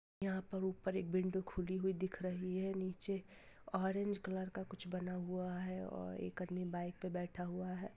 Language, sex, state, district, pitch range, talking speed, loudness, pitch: Hindi, female, Jharkhand, Sahebganj, 180-190 Hz, 205 wpm, -42 LUFS, 185 Hz